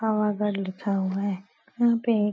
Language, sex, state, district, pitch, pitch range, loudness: Hindi, female, Uttar Pradesh, Etah, 210 Hz, 195-230 Hz, -26 LUFS